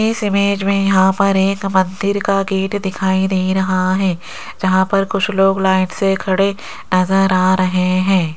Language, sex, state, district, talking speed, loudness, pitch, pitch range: Hindi, female, Rajasthan, Jaipur, 170 wpm, -16 LUFS, 190 Hz, 185-195 Hz